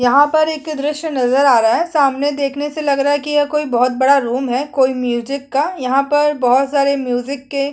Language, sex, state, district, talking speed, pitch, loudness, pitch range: Hindi, female, Chhattisgarh, Kabirdham, 240 wpm, 280 Hz, -16 LUFS, 260-295 Hz